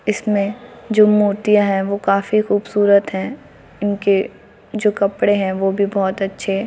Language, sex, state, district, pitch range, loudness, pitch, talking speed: Hindi, female, Bihar, Muzaffarpur, 195-210 Hz, -17 LUFS, 200 Hz, 160 wpm